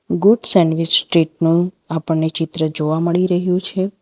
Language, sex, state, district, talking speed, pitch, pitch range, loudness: Gujarati, female, Gujarat, Valsad, 150 wpm, 170 Hz, 160-180 Hz, -16 LUFS